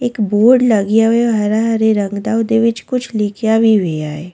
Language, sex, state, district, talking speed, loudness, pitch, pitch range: Punjabi, female, Delhi, New Delhi, 205 wpm, -14 LUFS, 220 Hz, 205-230 Hz